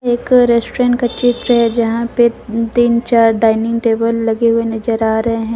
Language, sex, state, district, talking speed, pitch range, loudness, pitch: Hindi, female, Jharkhand, Deoghar, 185 wpm, 225-240 Hz, -14 LUFS, 230 Hz